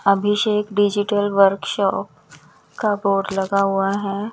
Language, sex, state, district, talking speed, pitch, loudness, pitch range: Hindi, female, Bihar, West Champaran, 110 wpm, 200 Hz, -19 LUFS, 195-205 Hz